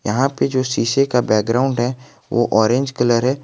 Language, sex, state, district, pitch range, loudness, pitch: Hindi, male, Jharkhand, Garhwa, 120-135 Hz, -18 LUFS, 125 Hz